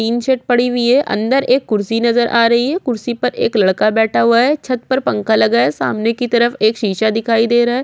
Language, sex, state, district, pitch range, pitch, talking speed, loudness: Hindi, female, Chhattisgarh, Korba, 220-250 Hz, 235 Hz, 245 wpm, -15 LUFS